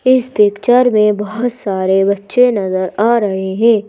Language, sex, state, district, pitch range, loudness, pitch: Hindi, female, Madhya Pradesh, Bhopal, 195-240 Hz, -14 LUFS, 210 Hz